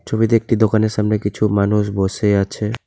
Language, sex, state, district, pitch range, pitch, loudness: Bengali, male, West Bengal, Alipurduar, 100-110 Hz, 105 Hz, -17 LUFS